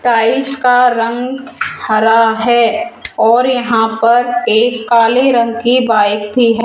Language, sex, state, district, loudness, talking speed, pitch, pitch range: Hindi, female, Rajasthan, Jaipur, -12 LUFS, 135 wpm, 235 Hz, 225-250 Hz